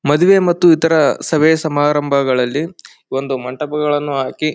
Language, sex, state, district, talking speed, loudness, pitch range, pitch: Kannada, male, Karnataka, Bijapur, 105 wpm, -15 LUFS, 140-160 Hz, 150 Hz